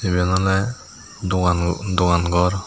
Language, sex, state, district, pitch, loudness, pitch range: Chakma, male, Tripura, Unakoti, 90 Hz, -20 LUFS, 90-95 Hz